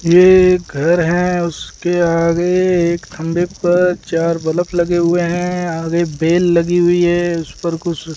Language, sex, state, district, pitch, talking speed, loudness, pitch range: Hindi, male, Rajasthan, Bikaner, 175 Hz, 170 wpm, -15 LUFS, 170-175 Hz